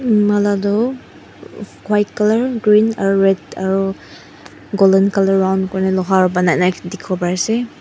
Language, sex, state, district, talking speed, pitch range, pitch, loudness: Nagamese, female, Mizoram, Aizawl, 155 wpm, 190-210 Hz, 195 Hz, -16 LUFS